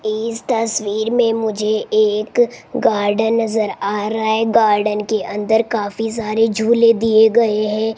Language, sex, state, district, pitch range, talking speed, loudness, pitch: Hindi, female, Rajasthan, Jaipur, 215-225 Hz, 145 wpm, -17 LUFS, 220 Hz